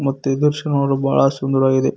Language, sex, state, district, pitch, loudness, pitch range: Kannada, male, Karnataka, Koppal, 135 Hz, -17 LUFS, 135-140 Hz